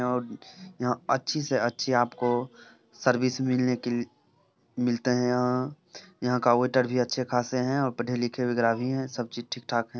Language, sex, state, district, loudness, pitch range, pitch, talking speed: Hindi, male, Bihar, Samastipur, -27 LUFS, 120-130 Hz, 125 Hz, 180 wpm